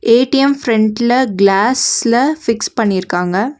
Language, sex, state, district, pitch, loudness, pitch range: Tamil, female, Tamil Nadu, Nilgiris, 235 Hz, -13 LUFS, 200-255 Hz